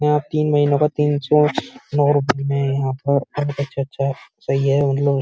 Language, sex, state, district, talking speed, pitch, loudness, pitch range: Hindi, male, Uttar Pradesh, Muzaffarnagar, 185 wpm, 140 Hz, -19 LUFS, 140-150 Hz